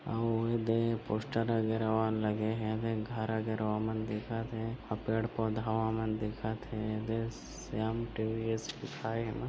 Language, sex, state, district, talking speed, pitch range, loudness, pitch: Chhattisgarhi, male, Chhattisgarh, Bilaspur, 165 wpm, 110-115 Hz, -34 LUFS, 110 Hz